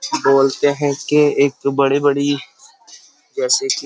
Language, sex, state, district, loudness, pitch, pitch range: Hindi, male, Uttar Pradesh, Jyotiba Phule Nagar, -16 LUFS, 145 Hz, 140-150 Hz